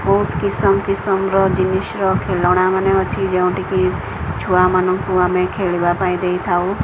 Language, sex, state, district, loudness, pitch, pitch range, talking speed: Odia, female, Odisha, Sambalpur, -17 LUFS, 185 Hz, 180-190 Hz, 140 wpm